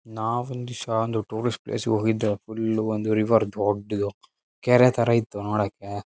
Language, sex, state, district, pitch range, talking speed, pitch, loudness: Kannada, male, Karnataka, Shimoga, 105-115 Hz, 130 wpm, 110 Hz, -24 LUFS